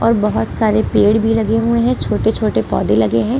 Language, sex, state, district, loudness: Hindi, female, Delhi, New Delhi, -15 LUFS